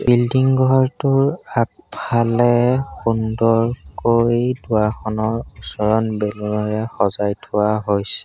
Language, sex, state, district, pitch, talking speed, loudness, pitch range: Assamese, male, Assam, Sonitpur, 115 Hz, 75 wpm, -18 LUFS, 105-120 Hz